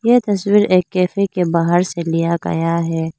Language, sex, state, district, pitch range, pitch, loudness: Hindi, female, Arunachal Pradesh, Lower Dibang Valley, 165-200 Hz, 175 Hz, -16 LUFS